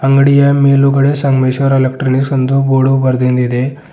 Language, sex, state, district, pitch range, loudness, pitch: Kannada, male, Karnataka, Bidar, 130-140 Hz, -11 LUFS, 135 Hz